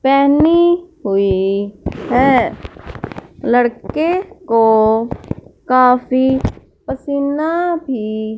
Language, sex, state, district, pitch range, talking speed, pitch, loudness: Hindi, female, Punjab, Fazilka, 220-315 Hz, 55 wpm, 260 Hz, -15 LUFS